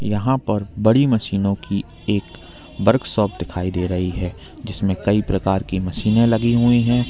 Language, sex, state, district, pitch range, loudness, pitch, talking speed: Hindi, male, Uttar Pradesh, Lalitpur, 95-115 Hz, -19 LUFS, 100 Hz, 160 wpm